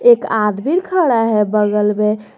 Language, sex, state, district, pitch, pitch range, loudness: Hindi, female, Jharkhand, Garhwa, 215 Hz, 210-325 Hz, -15 LUFS